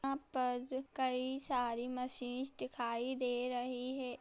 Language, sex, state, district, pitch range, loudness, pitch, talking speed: Hindi, female, Bihar, Samastipur, 245-260 Hz, -39 LUFS, 255 Hz, 130 wpm